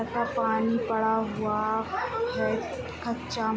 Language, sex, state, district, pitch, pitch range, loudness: Hindi, female, Jharkhand, Sahebganj, 225 Hz, 220-235 Hz, -28 LUFS